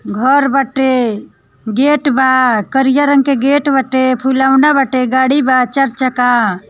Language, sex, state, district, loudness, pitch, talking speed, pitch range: Bhojpuri, female, Bihar, East Champaran, -12 LUFS, 265 Hz, 135 wpm, 250-275 Hz